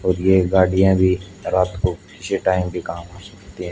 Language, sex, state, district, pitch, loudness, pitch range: Hindi, male, Haryana, Charkhi Dadri, 95 Hz, -19 LUFS, 90-95 Hz